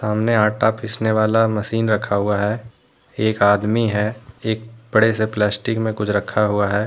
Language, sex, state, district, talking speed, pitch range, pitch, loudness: Hindi, male, Jharkhand, Deoghar, 175 wpm, 105-115 Hz, 110 Hz, -19 LUFS